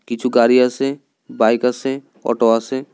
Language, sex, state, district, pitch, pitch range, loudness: Bengali, male, Tripura, South Tripura, 125 Hz, 115-135 Hz, -17 LUFS